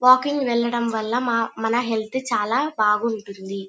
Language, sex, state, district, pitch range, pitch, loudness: Telugu, female, Andhra Pradesh, Chittoor, 215-245 Hz, 230 Hz, -22 LUFS